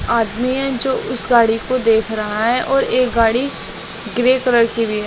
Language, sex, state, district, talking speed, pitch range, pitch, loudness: Hindi, female, Delhi, New Delhi, 190 wpm, 225-255 Hz, 235 Hz, -16 LUFS